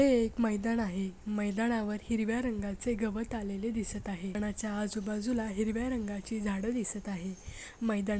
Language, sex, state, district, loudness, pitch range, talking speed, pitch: Marathi, female, Maharashtra, Pune, -34 LUFS, 205-230 Hz, 145 wpm, 215 Hz